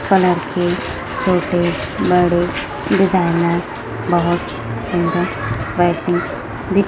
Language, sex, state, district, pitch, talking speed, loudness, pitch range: Hindi, female, Madhya Pradesh, Dhar, 175 Hz, 80 wpm, -18 LUFS, 120-180 Hz